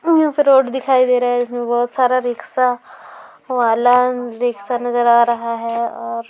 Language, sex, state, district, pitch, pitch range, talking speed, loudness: Hindi, female, Bihar, Saran, 245 Hz, 235-255 Hz, 170 wpm, -16 LUFS